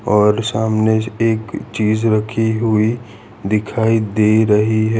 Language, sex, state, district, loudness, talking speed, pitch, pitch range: Hindi, male, Gujarat, Valsad, -16 LUFS, 120 wpm, 110 Hz, 105-110 Hz